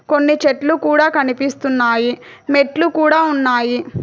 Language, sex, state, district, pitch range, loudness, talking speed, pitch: Telugu, female, Telangana, Hyderabad, 260-310 Hz, -15 LUFS, 105 wpm, 285 Hz